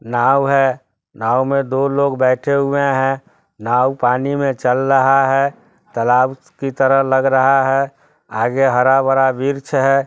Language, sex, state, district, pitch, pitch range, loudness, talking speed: Hindi, male, Bihar, Sitamarhi, 135 Hz, 130-140 Hz, -16 LUFS, 150 wpm